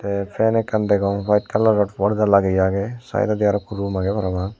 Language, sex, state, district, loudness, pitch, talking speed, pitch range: Chakma, male, Tripura, Unakoti, -20 LUFS, 100 Hz, 220 wpm, 100-105 Hz